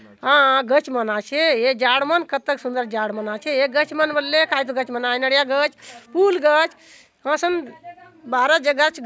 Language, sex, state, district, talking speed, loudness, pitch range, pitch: Halbi, female, Chhattisgarh, Bastar, 190 wpm, -19 LUFS, 250-310 Hz, 285 Hz